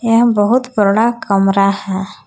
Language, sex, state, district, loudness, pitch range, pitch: Hindi, female, Jharkhand, Palamu, -14 LUFS, 195-230 Hz, 205 Hz